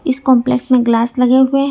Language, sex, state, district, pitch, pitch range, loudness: Hindi, female, Jharkhand, Ranchi, 255 Hz, 250-265 Hz, -13 LUFS